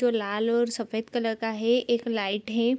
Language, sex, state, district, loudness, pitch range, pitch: Hindi, female, Bihar, Gopalganj, -27 LUFS, 220-240 Hz, 230 Hz